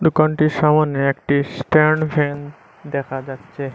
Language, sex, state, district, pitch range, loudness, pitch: Bengali, male, Assam, Hailakandi, 140-155 Hz, -18 LUFS, 145 Hz